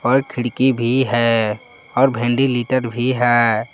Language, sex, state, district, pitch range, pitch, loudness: Hindi, male, Jharkhand, Palamu, 120-130 Hz, 120 Hz, -17 LUFS